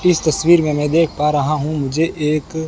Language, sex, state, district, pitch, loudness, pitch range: Hindi, male, Rajasthan, Bikaner, 155 Hz, -16 LUFS, 150-165 Hz